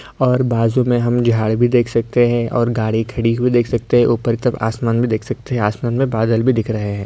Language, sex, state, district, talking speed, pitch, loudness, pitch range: Hindi, male, Uttar Pradesh, Ghazipur, 255 wpm, 120 Hz, -17 LUFS, 115-120 Hz